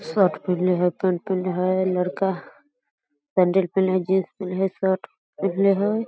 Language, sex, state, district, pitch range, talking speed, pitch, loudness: Maithili, female, Bihar, Samastipur, 180-195 Hz, 150 wpm, 185 Hz, -23 LUFS